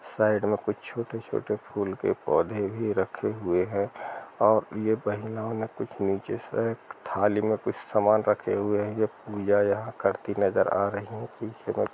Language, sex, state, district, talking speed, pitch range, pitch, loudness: Hindi, male, Bihar, East Champaran, 185 wpm, 100-110 Hz, 105 Hz, -28 LUFS